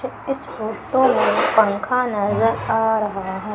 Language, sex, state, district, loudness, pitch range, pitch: Hindi, female, Madhya Pradesh, Umaria, -19 LUFS, 210-250 Hz, 220 Hz